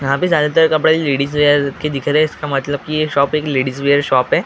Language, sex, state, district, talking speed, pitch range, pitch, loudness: Hindi, male, Maharashtra, Gondia, 280 wpm, 140-155 Hz, 145 Hz, -15 LUFS